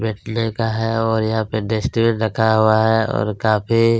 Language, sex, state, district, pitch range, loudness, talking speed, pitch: Hindi, male, Chhattisgarh, Kabirdham, 110-115 Hz, -18 LUFS, 195 wpm, 110 Hz